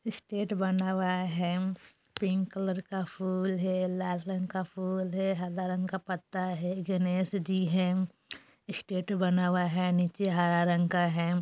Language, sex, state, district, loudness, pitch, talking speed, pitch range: Bajjika, female, Bihar, Vaishali, -31 LUFS, 185 Hz, 165 wpm, 180-190 Hz